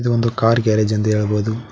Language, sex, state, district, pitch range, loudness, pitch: Kannada, male, Karnataka, Koppal, 105-115 Hz, -17 LUFS, 110 Hz